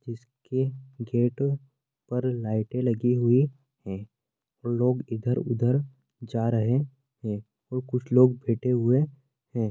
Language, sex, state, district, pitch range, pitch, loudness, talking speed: Hindi, male, Chhattisgarh, Korba, 120-135 Hz, 125 Hz, -27 LUFS, 125 wpm